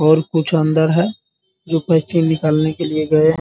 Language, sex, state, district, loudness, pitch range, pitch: Hindi, male, Bihar, Muzaffarpur, -16 LUFS, 155-165 Hz, 160 Hz